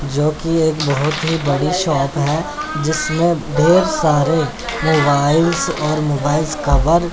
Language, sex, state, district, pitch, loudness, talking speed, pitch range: Hindi, male, Chandigarh, Chandigarh, 155 Hz, -16 LUFS, 125 wpm, 145-165 Hz